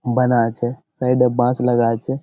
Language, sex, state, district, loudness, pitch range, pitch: Bengali, male, West Bengal, Jalpaiguri, -18 LUFS, 120-125 Hz, 125 Hz